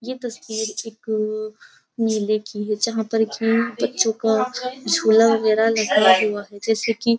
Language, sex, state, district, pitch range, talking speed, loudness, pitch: Hindi, female, Uttar Pradesh, Jyotiba Phule Nagar, 215-230 Hz, 160 wpm, -20 LUFS, 225 Hz